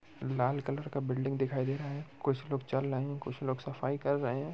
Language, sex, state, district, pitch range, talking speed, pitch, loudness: Hindi, male, Bihar, Muzaffarpur, 130-140 Hz, 225 wpm, 135 Hz, -35 LUFS